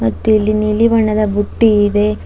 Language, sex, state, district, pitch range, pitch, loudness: Kannada, female, Karnataka, Bidar, 205-220 Hz, 215 Hz, -13 LUFS